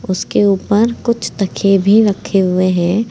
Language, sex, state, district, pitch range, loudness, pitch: Hindi, female, Uttar Pradesh, Saharanpur, 185-215 Hz, -14 LUFS, 195 Hz